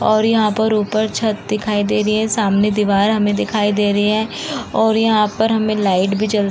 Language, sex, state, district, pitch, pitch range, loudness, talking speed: Hindi, female, Uttar Pradesh, Varanasi, 215 Hz, 205-220 Hz, -16 LUFS, 220 wpm